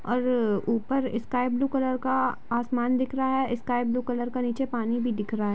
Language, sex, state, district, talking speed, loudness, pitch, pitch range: Hindi, female, Jharkhand, Jamtara, 215 wpm, -27 LUFS, 245 Hz, 235-255 Hz